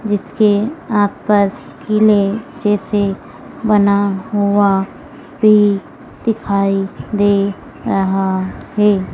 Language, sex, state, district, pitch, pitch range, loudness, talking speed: Hindi, female, Madhya Pradesh, Dhar, 205 Hz, 195-215 Hz, -15 LUFS, 80 wpm